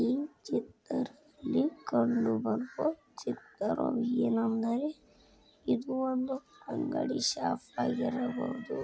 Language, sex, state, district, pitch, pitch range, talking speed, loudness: Kannada, male, Karnataka, Bijapur, 255 Hz, 235-275 Hz, 75 wpm, -33 LUFS